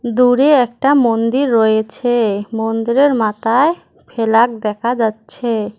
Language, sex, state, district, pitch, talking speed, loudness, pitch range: Bengali, female, West Bengal, Cooch Behar, 230 Hz, 95 wpm, -15 LUFS, 220-250 Hz